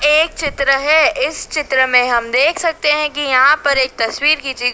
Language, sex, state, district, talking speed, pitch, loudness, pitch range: Hindi, female, Madhya Pradesh, Dhar, 205 wpm, 290 Hz, -14 LUFS, 260-305 Hz